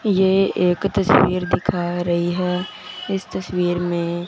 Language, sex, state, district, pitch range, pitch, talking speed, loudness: Hindi, male, Punjab, Fazilka, 175-190 Hz, 180 Hz, 125 wpm, -20 LUFS